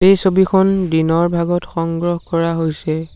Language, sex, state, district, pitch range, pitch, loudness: Assamese, male, Assam, Sonitpur, 165-190 Hz, 170 Hz, -16 LUFS